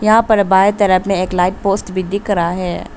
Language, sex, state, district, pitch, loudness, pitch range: Hindi, female, Arunachal Pradesh, Papum Pare, 190 Hz, -15 LUFS, 185-205 Hz